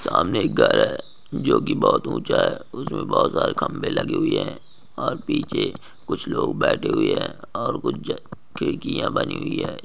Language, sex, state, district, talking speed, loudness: Hindi, male, Maharashtra, Chandrapur, 175 wpm, -23 LUFS